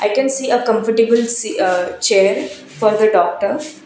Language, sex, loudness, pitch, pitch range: English, female, -16 LUFS, 225 Hz, 200-245 Hz